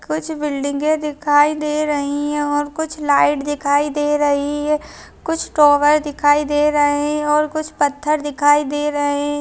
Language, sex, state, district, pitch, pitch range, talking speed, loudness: Hindi, female, Bihar, Darbhanga, 295 Hz, 290-300 Hz, 165 wpm, -17 LUFS